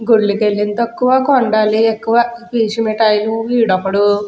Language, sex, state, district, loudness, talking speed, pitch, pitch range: Telugu, female, Andhra Pradesh, Guntur, -14 LUFS, 125 wpm, 225 Hz, 210-235 Hz